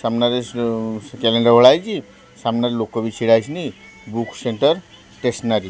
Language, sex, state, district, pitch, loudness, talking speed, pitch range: Odia, male, Odisha, Khordha, 115 Hz, -19 LUFS, 160 wpm, 115-120 Hz